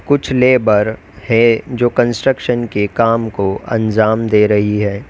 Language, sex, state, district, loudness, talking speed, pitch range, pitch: Hindi, male, Uttar Pradesh, Lalitpur, -14 LUFS, 140 wpm, 105-120 Hz, 115 Hz